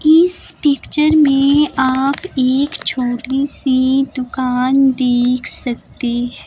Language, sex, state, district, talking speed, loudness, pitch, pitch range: Hindi, female, Himachal Pradesh, Shimla, 100 wpm, -15 LUFS, 265 Hz, 255-280 Hz